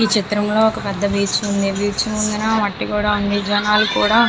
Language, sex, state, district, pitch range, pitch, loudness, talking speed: Telugu, female, Andhra Pradesh, Visakhapatnam, 205-215 Hz, 210 Hz, -18 LUFS, 210 wpm